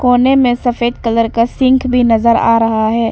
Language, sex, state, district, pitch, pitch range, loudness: Hindi, female, Arunachal Pradesh, Papum Pare, 235 Hz, 230-250 Hz, -12 LUFS